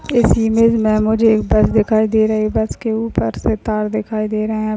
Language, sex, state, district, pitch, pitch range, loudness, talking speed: Hindi, female, Maharashtra, Sindhudurg, 215 Hz, 215-220 Hz, -16 LUFS, 240 wpm